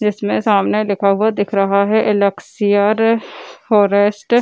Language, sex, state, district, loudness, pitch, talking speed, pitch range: Hindi, female, Bihar, Gaya, -15 LUFS, 205 Hz, 135 wpm, 200-215 Hz